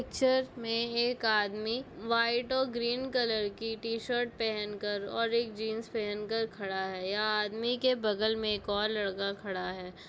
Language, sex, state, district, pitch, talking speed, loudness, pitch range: Hindi, female, Bihar, Begusarai, 220 Hz, 160 wpm, -32 LUFS, 210-235 Hz